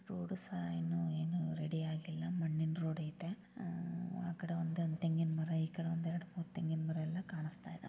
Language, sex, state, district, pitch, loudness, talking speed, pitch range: Kannada, female, Karnataka, Raichur, 165 Hz, -40 LUFS, 160 wpm, 160-175 Hz